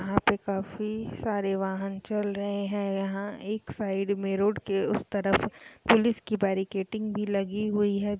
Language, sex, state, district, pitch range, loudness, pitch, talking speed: Hindi, female, Bihar, Purnia, 195-210 Hz, -29 LUFS, 200 Hz, 170 wpm